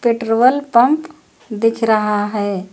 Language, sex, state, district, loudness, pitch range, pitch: Hindi, female, Uttar Pradesh, Lucknow, -16 LUFS, 210-240 Hz, 225 Hz